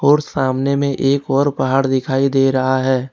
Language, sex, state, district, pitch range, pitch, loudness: Hindi, male, Jharkhand, Ranchi, 130-140 Hz, 135 Hz, -16 LUFS